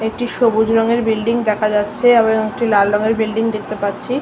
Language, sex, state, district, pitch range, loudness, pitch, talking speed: Bengali, female, West Bengal, North 24 Parganas, 215-235 Hz, -16 LUFS, 220 Hz, 200 wpm